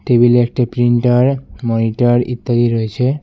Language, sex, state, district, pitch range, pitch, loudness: Bengali, male, West Bengal, Alipurduar, 120-125 Hz, 120 Hz, -14 LUFS